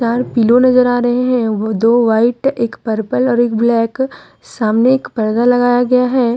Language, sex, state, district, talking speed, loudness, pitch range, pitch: Hindi, female, Jharkhand, Deoghar, 190 wpm, -14 LUFS, 230-250 Hz, 240 Hz